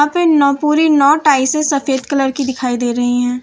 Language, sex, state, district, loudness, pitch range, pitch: Hindi, female, Gujarat, Valsad, -14 LUFS, 260-300 Hz, 280 Hz